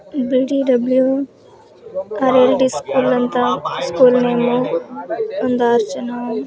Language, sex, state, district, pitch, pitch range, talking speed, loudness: Kannada, female, Karnataka, Dakshina Kannada, 255 Hz, 245-275 Hz, 85 wpm, -17 LUFS